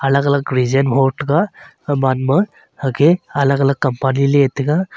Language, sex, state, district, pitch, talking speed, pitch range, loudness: Wancho, male, Arunachal Pradesh, Longding, 140 Hz, 155 wpm, 135-145 Hz, -16 LUFS